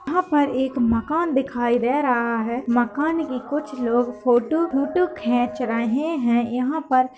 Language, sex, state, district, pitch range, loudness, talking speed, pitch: Hindi, female, Uttar Pradesh, Hamirpur, 240-295 Hz, -22 LUFS, 165 wpm, 255 Hz